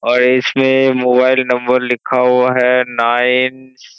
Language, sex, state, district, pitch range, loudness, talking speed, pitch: Hindi, male, Bihar, Kishanganj, 125-130 Hz, -13 LUFS, 135 wpm, 125 Hz